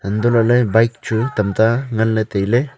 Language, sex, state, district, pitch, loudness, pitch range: Wancho, male, Arunachal Pradesh, Longding, 115 Hz, -17 LUFS, 110-120 Hz